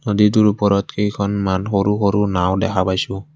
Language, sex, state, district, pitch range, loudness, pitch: Assamese, male, Assam, Kamrup Metropolitan, 95-105 Hz, -18 LUFS, 100 Hz